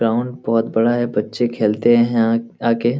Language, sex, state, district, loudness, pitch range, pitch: Hindi, male, Bihar, Jahanabad, -18 LUFS, 115-120 Hz, 115 Hz